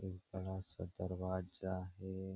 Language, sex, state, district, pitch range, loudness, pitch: Hindi, male, Bihar, Supaul, 90-95 Hz, -45 LUFS, 95 Hz